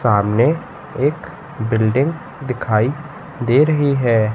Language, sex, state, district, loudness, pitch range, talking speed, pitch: Hindi, male, Madhya Pradesh, Katni, -18 LUFS, 115-150 Hz, 95 wpm, 135 Hz